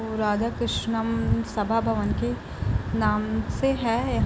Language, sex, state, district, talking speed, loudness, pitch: Hindi, female, Bihar, East Champaran, 115 wpm, -26 LUFS, 210 Hz